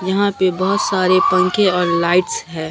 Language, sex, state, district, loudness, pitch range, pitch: Hindi, female, Bihar, Katihar, -16 LUFS, 180-195 Hz, 185 Hz